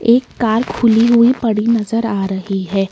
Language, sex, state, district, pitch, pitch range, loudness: Hindi, male, Karnataka, Bangalore, 225 Hz, 195-235 Hz, -15 LUFS